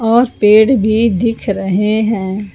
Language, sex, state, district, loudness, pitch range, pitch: Hindi, female, Jharkhand, Ranchi, -13 LUFS, 205-225 Hz, 215 Hz